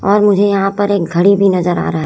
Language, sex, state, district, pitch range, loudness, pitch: Hindi, male, Chhattisgarh, Raipur, 180-205 Hz, -12 LUFS, 195 Hz